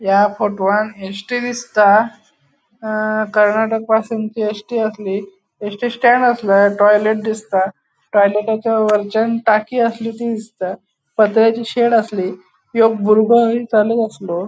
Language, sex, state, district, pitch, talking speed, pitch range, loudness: Konkani, male, Goa, North and South Goa, 215 Hz, 120 wpm, 200-225 Hz, -16 LUFS